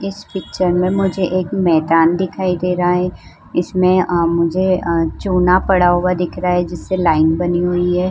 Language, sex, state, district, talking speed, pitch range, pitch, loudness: Hindi, female, Uttar Pradesh, Muzaffarnagar, 170 wpm, 175-185 Hz, 180 Hz, -16 LUFS